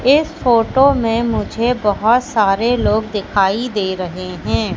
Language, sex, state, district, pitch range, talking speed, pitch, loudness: Hindi, female, Madhya Pradesh, Katni, 200-240 Hz, 140 wpm, 225 Hz, -16 LUFS